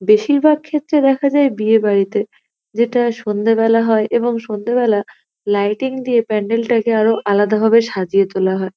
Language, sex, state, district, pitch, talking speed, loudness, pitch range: Bengali, female, West Bengal, North 24 Parganas, 225 Hz, 135 wpm, -16 LUFS, 210-240 Hz